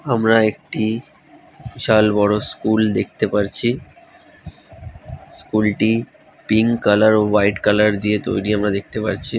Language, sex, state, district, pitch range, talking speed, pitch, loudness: Bengali, male, West Bengal, North 24 Parganas, 105-115 Hz, 115 wpm, 110 Hz, -18 LUFS